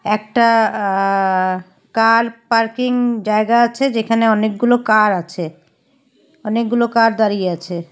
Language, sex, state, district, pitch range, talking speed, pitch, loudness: Bengali, female, Assam, Hailakandi, 195-235 Hz, 105 wpm, 225 Hz, -16 LUFS